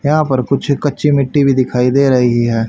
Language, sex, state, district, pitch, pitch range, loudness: Hindi, male, Haryana, Charkhi Dadri, 135 Hz, 125-140 Hz, -13 LUFS